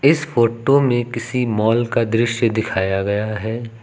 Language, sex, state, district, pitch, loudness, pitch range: Hindi, male, Uttar Pradesh, Lucknow, 115 Hz, -18 LUFS, 110-120 Hz